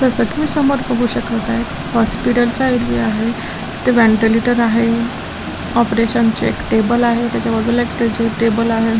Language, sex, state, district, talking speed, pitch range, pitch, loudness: Marathi, female, Maharashtra, Washim, 160 wpm, 225-240 Hz, 235 Hz, -16 LUFS